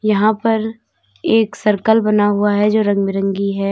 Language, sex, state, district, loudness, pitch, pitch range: Hindi, female, Uttar Pradesh, Lalitpur, -16 LUFS, 205 Hz, 195-220 Hz